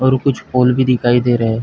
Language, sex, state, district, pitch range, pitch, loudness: Hindi, male, Chhattisgarh, Bilaspur, 120-130 Hz, 125 Hz, -15 LUFS